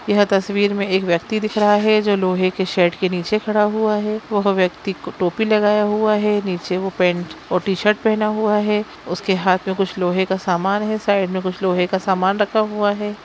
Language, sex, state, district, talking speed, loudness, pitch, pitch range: Hindi, female, Bihar, Jamui, 220 wpm, -19 LUFS, 200 Hz, 185-210 Hz